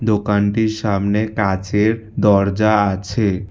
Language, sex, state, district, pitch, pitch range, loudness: Bengali, male, West Bengal, Alipurduar, 105 Hz, 100-110 Hz, -17 LUFS